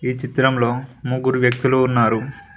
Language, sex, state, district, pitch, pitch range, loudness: Telugu, male, Telangana, Mahabubabad, 130 Hz, 125-130 Hz, -19 LUFS